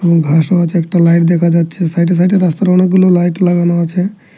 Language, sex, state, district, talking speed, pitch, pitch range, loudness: Bengali, male, Tripura, Unakoti, 180 wpm, 175 Hz, 170-180 Hz, -11 LUFS